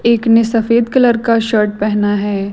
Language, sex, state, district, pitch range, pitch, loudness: Hindi, female, Chhattisgarh, Raipur, 210-235 Hz, 225 Hz, -13 LUFS